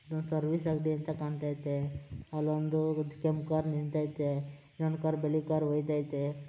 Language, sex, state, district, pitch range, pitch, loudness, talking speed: Kannada, male, Karnataka, Mysore, 145-155 Hz, 150 Hz, -33 LUFS, 130 wpm